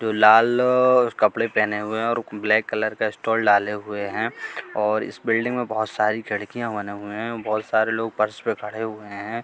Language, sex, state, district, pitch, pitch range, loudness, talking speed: Hindi, male, Bihar, Katihar, 110 Hz, 105-115 Hz, -22 LUFS, 205 wpm